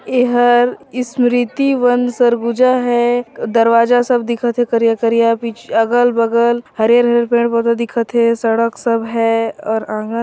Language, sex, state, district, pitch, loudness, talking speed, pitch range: Chhattisgarhi, female, Chhattisgarh, Sarguja, 235 Hz, -14 LUFS, 130 wpm, 230-245 Hz